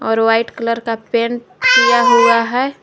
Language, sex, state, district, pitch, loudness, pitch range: Hindi, female, Jharkhand, Garhwa, 235 Hz, -14 LUFS, 230-260 Hz